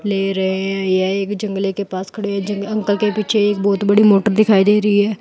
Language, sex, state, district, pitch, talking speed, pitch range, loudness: Hindi, female, Uttar Pradesh, Lalitpur, 200 Hz, 255 wpm, 195-210 Hz, -17 LUFS